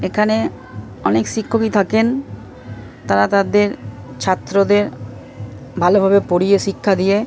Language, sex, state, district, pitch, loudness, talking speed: Bengali, female, West Bengal, Purulia, 185 Hz, -16 LUFS, 90 wpm